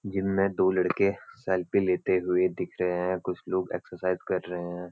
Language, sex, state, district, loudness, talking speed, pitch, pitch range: Hindi, male, Uttarakhand, Uttarkashi, -28 LUFS, 195 wpm, 90 Hz, 90-95 Hz